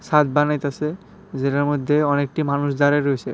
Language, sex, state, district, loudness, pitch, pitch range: Bengali, male, Tripura, West Tripura, -20 LUFS, 145 Hz, 140-150 Hz